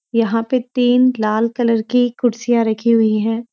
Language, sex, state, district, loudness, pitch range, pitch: Hindi, female, Uttarakhand, Uttarkashi, -16 LUFS, 225-245 Hz, 235 Hz